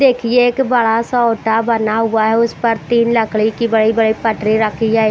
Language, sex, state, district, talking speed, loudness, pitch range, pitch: Hindi, female, Bihar, West Champaran, 210 wpm, -14 LUFS, 220-235 Hz, 225 Hz